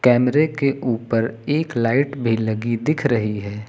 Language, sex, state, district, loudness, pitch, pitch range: Hindi, male, Uttar Pradesh, Lucknow, -20 LUFS, 120 Hz, 115-140 Hz